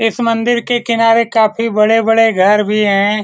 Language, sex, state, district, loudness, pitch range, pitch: Hindi, male, Bihar, Saran, -12 LUFS, 210-230 Hz, 225 Hz